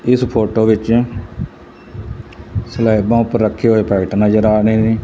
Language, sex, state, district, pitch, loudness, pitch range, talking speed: Punjabi, male, Punjab, Fazilka, 110 Hz, -14 LUFS, 110-115 Hz, 145 wpm